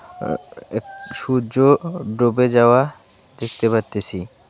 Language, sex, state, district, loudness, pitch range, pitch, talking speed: Bengali, male, West Bengal, Alipurduar, -19 LUFS, 115-145 Hz, 125 Hz, 95 wpm